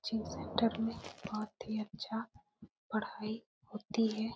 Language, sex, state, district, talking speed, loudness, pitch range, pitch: Hindi, female, Uttar Pradesh, Etah, 125 wpm, -38 LUFS, 215-225 Hz, 220 Hz